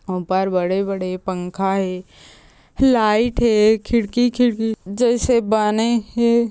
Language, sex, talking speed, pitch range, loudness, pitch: Chhattisgarhi, female, 130 wpm, 190-235 Hz, -18 LUFS, 220 Hz